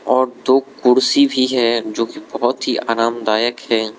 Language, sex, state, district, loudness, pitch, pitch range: Hindi, male, Arunachal Pradesh, Lower Dibang Valley, -17 LUFS, 120 Hz, 115-130 Hz